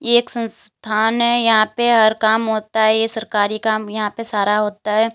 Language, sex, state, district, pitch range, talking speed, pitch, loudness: Hindi, female, Uttar Pradesh, Lalitpur, 215-230 Hz, 200 wpm, 220 Hz, -17 LUFS